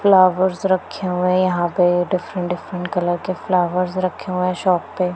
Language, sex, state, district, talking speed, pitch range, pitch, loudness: Hindi, female, Punjab, Pathankot, 165 wpm, 180-185 Hz, 180 Hz, -19 LUFS